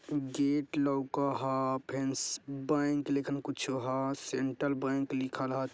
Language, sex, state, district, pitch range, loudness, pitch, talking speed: Bajjika, male, Bihar, Vaishali, 130-140 Hz, -33 LUFS, 135 Hz, 125 wpm